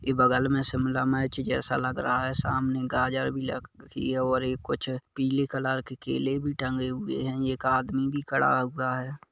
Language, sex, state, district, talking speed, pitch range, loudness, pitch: Hindi, male, Chhattisgarh, Kabirdham, 200 wpm, 130-135 Hz, -28 LUFS, 130 Hz